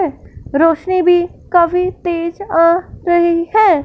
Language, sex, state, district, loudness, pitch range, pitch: Hindi, female, Punjab, Fazilka, -14 LUFS, 335-365 Hz, 345 Hz